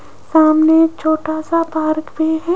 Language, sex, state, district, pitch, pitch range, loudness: Hindi, female, Rajasthan, Jaipur, 315 Hz, 315-325 Hz, -15 LUFS